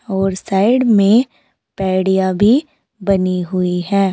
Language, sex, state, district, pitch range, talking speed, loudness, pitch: Hindi, female, Uttar Pradesh, Saharanpur, 185-215 Hz, 115 wpm, -15 LUFS, 195 Hz